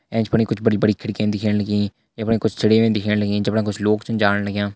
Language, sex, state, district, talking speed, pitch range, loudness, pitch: Hindi, male, Uttarakhand, Uttarkashi, 240 wpm, 105-110 Hz, -20 LUFS, 105 Hz